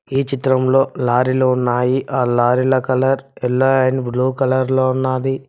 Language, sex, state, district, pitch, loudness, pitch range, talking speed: Telugu, male, Telangana, Mahabubabad, 130 Hz, -17 LUFS, 125-135 Hz, 140 wpm